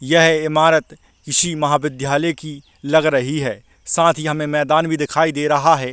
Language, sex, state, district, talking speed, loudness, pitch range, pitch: Hindi, male, Chhattisgarh, Balrampur, 170 wpm, -17 LUFS, 145-160 Hz, 155 Hz